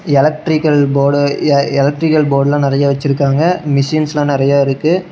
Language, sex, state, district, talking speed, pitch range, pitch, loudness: Tamil, male, Tamil Nadu, Namakkal, 140 wpm, 140-155 Hz, 145 Hz, -13 LUFS